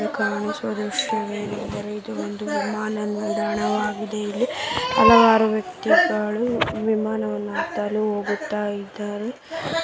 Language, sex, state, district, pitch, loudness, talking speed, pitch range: Kannada, male, Karnataka, Bijapur, 210 Hz, -22 LUFS, 75 wpm, 205-220 Hz